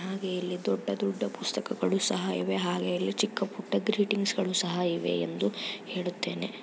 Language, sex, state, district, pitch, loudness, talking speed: Kannada, female, Karnataka, Raichur, 180 Hz, -30 LUFS, 145 wpm